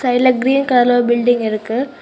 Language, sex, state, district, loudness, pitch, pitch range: Tamil, female, Tamil Nadu, Kanyakumari, -15 LUFS, 245 Hz, 240-255 Hz